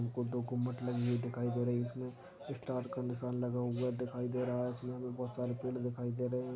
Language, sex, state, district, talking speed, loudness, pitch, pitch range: Hindi, male, Bihar, Purnia, 255 wpm, -38 LUFS, 125 Hz, 120-125 Hz